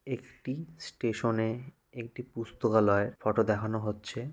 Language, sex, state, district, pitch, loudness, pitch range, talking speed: Bengali, male, West Bengal, North 24 Parganas, 115 Hz, -31 LUFS, 110-125 Hz, 95 wpm